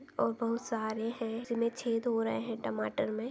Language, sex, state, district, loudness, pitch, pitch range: Hindi, female, Chhattisgarh, Balrampur, -34 LUFS, 230 Hz, 220-235 Hz